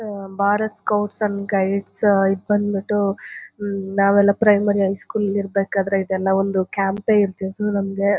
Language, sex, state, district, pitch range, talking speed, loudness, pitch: Kannada, female, Karnataka, Chamarajanagar, 195-205 Hz, 140 wpm, -20 LUFS, 200 Hz